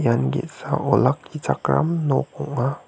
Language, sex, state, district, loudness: Garo, male, Meghalaya, West Garo Hills, -22 LUFS